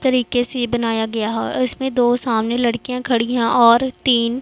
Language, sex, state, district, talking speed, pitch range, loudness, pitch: Hindi, female, Punjab, Pathankot, 175 wpm, 230-250 Hz, -18 LUFS, 240 Hz